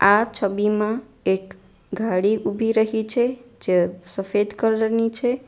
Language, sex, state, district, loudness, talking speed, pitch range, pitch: Gujarati, female, Gujarat, Valsad, -22 LUFS, 130 wpm, 200-225 Hz, 215 Hz